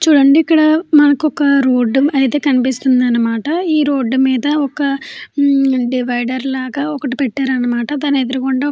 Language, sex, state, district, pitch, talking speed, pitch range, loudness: Telugu, female, Andhra Pradesh, Chittoor, 275 Hz, 140 wpm, 255-290 Hz, -14 LUFS